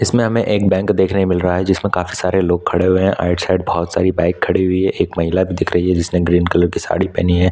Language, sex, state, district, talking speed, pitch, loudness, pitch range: Hindi, male, Chhattisgarh, Korba, 305 wpm, 90 Hz, -16 LUFS, 90-95 Hz